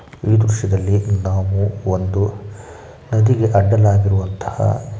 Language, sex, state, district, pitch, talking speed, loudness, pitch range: Kannada, male, Karnataka, Shimoga, 100 Hz, 70 wpm, -17 LUFS, 95-110 Hz